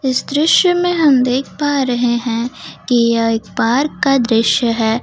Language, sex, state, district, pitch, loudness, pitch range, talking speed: Hindi, female, Jharkhand, Ranchi, 250 Hz, -15 LUFS, 230-285 Hz, 165 wpm